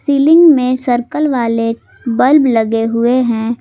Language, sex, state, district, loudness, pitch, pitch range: Hindi, female, Jharkhand, Palamu, -12 LUFS, 245 Hz, 230-275 Hz